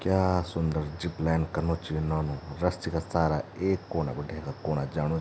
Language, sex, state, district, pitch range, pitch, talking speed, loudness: Garhwali, male, Uttarakhand, Tehri Garhwal, 75-85 Hz, 80 Hz, 185 wpm, -30 LUFS